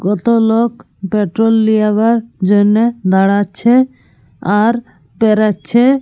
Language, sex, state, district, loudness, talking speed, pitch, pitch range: Bengali, female, Jharkhand, Jamtara, -13 LUFS, 90 wpm, 215 Hz, 205-230 Hz